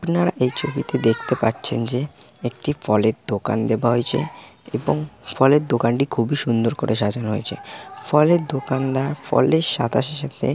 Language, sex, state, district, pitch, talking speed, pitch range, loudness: Bengali, male, West Bengal, Malda, 125 Hz, 135 wpm, 115-145 Hz, -21 LUFS